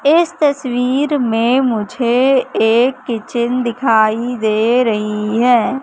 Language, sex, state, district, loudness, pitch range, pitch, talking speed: Hindi, female, Madhya Pradesh, Katni, -15 LUFS, 225-260 Hz, 245 Hz, 105 wpm